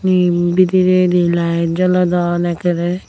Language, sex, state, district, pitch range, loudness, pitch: Chakma, female, Tripura, Unakoti, 175-185 Hz, -15 LUFS, 175 Hz